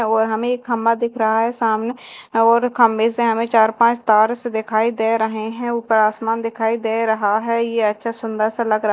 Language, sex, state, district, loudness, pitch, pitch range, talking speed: Hindi, female, Madhya Pradesh, Dhar, -18 LUFS, 225 Hz, 220-235 Hz, 215 wpm